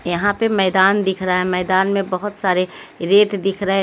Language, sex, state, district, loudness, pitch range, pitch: Hindi, female, Haryana, Jhajjar, -17 LUFS, 185-200 Hz, 190 Hz